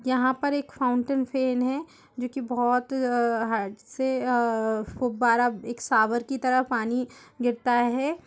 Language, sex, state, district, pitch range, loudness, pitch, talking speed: Hindi, female, Uttar Pradesh, Jalaun, 240-260 Hz, -26 LUFS, 250 Hz, 150 wpm